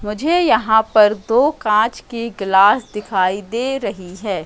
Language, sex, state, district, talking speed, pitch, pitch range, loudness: Hindi, female, Madhya Pradesh, Katni, 150 wpm, 215 Hz, 200-235 Hz, -16 LUFS